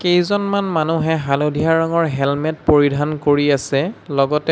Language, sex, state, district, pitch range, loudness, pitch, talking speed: Assamese, male, Assam, Sonitpur, 145-165 Hz, -17 LUFS, 155 Hz, 120 wpm